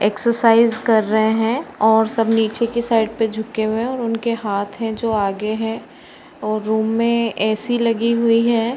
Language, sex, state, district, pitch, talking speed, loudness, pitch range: Hindi, female, Uttar Pradesh, Varanasi, 225 Hz, 185 wpm, -18 LUFS, 220-230 Hz